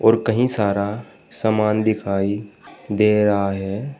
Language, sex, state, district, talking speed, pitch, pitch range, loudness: Hindi, male, Uttar Pradesh, Saharanpur, 120 wpm, 105 Hz, 100-110 Hz, -20 LUFS